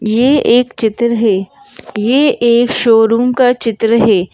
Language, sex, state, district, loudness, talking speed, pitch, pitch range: Hindi, female, Madhya Pradesh, Bhopal, -12 LUFS, 140 wpm, 235 Hz, 225-250 Hz